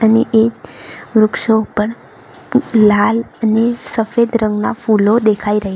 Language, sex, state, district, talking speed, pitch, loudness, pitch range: Gujarati, female, Gujarat, Valsad, 125 wpm, 220 Hz, -14 LUFS, 215-230 Hz